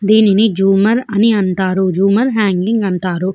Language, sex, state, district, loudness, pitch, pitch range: Telugu, female, Andhra Pradesh, Visakhapatnam, -13 LUFS, 200 Hz, 190-220 Hz